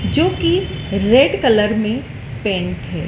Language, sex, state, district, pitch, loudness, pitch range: Hindi, female, Madhya Pradesh, Dhar, 220 Hz, -17 LUFS, 210-245 Hz